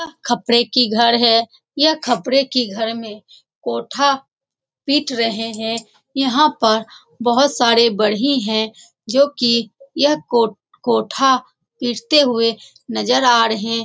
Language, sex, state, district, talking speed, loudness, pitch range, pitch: Hindi, female, Bihar, Saran, 130 wpm, -17 LUFS, 225-275 Hz, 235 Hz